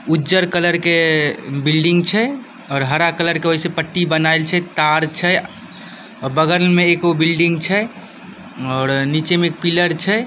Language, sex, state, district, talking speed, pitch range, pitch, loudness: Maithili, male, Bihar, Samastipur, 165 wpm, 160-175 Hz, 170 Hz, -15 LUFS